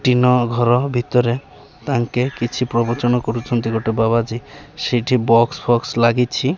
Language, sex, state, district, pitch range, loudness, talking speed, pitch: Odia, male, Odisha, Malkangiri, 115-125 Hz, -18 LUFS, 120 wpm, 120 Hz